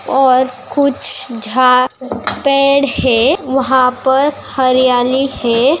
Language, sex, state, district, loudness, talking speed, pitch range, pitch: Hindi, female, Bihar, Begusarai, -12 LUFS, 95 wpm, 255-275 Hz, 260 Hz